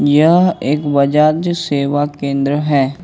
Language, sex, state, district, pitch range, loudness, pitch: Hindi, male, Jharkhand, Ranchi, 140-155 Hz, -14 LUFS, 145 Hz